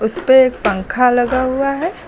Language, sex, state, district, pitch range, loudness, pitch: Hindi, female, Uttar Pradesh, Lucknow, 245-270 Hz, -14 LUFS, 255 Hz